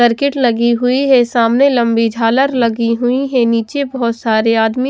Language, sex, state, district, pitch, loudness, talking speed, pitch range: Hindi, female, Haryana, Jhajjar, 240 Hz, -13 LUFS, 185 wpm, 230-260 Hz